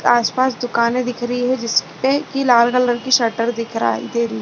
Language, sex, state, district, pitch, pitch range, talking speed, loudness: Hindi, female, Chhattisgarh, Balrampur, 240 Hz, 230-250 Hz, 230 wpm, -18 LUFS